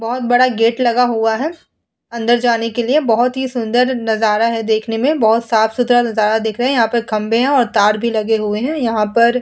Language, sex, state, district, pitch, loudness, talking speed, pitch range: Hindi, female, Uttar Pradesh, Muzaffarnagar, 235 Hz, -15 LUFS, 220 wpm, 220-245 Hz